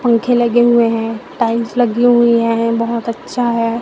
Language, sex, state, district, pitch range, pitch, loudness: Hindi, female, Chhattisgarh, Raipur, 230-240 Hz, 235 Hz, -14 LUFS